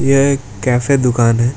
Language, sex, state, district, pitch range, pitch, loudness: Hindi, male, West Bengal, Alipurduar, 120-135 Hz, 125 Hz, -14 LUFS